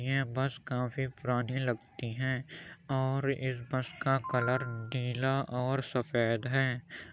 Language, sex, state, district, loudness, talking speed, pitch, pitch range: Hindi, male, Uttar Pradesh, Jyotiba Phule Nagar, -33 LUFS, 125 wpm, 130 Hz, 125-135 Hz